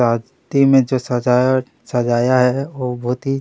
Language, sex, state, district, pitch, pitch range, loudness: Hindi, male, Chhattisgarh, Kabirdham, 125 Hz, 125-135 Hz, -17 LUFS